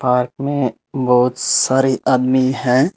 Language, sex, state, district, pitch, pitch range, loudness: Hindi, male, Tripura, Unakoti, 130 Hz, 125-135 Hz, -16 LUFS